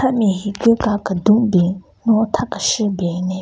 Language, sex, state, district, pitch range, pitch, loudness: Rengma, female, Nagaland, Kohima, 185-230 Hz, 205 Hz, -17 LUFS